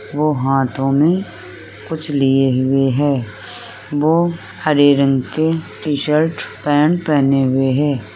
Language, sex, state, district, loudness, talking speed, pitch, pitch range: Hindi, female, Uttar Pradesh, Etah, -16 LUFS, 120 wpm, 145 Hz, 135-155 Hz